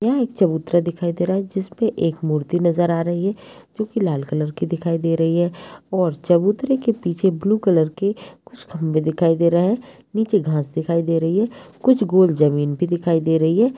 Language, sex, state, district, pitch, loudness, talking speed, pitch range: Hindi, female, Bihar, Gopalganj, 175 Hz, -20 LUFS, 220 wpm, 165-200 Hz